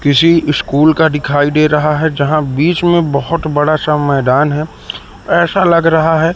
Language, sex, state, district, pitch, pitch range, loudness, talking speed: Hindi, male, Madhya Pradesh, Katni, 155 Hz, 145-165 Hz, -12 LUFS, 180 wpm